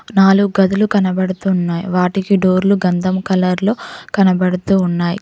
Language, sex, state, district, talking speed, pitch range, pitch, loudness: Telugu, female, Telangana, Mahabubabad, 105 wpm, 180-195 Hz, 185 Hz, -15 LUFS